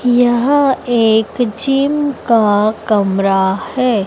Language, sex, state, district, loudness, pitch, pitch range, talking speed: Hindi, female, Madhya Pradesh, Dhar, -14 LUFS, 235 Hz, 210-255 Hz, 90 wpm